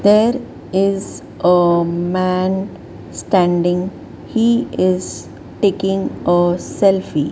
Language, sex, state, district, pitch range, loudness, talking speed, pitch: English, male, Maharashtra, Mumbai Suburban, 175-195 Hz, -17 LUFS, 80 wpm, 185 Hz